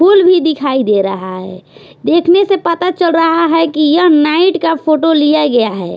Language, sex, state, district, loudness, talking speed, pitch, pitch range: Hindi, female, Punjab, Pathankot, -11 LUFS, 200 wpm, 320 Hz, 265-340 Hz